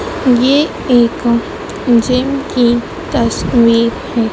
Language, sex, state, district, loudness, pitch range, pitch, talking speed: Hindi, female, Madhya Pradesh, Dhar, -13 LUFS, 235-260 Hz, 240 Hz, 85 wpm